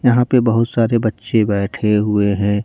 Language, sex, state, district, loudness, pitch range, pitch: Hindi, male, Jharkhand, Ranchi, -16 LUFS, 105-115 Hz, 110 Hz